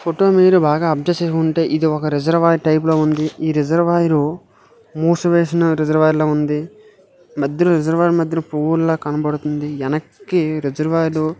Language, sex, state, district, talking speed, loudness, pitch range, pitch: Telugu, male, Karnataka, Gulbarga, 145 wpm, -17 LUFS, 155-170 Hz, 160 Hz